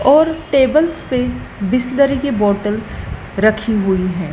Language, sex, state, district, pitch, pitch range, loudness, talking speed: Hindi, female, Madhya Pradesh, Dhar, 245 Hz, 205-275 Hz, -16 LUFS, 125 wpm